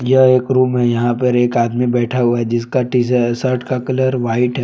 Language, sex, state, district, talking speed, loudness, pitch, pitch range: Hindi, male, Jharkhand, Palamu, 220 wpm, -15 LUFS, 125 Hz, 120-130 Hz